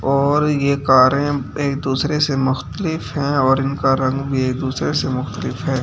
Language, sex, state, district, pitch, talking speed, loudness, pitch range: Hindi, male, Delhi, New Delhi, 135 Hz, 165 wpm, -18 LUFS, 130-145 Hz